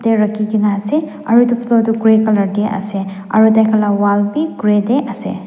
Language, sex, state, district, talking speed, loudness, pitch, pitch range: Nagamese, female, Nagaland, Dimapur, 210 wpm, -14 LUFS, 215 Hz, 205-230 Hz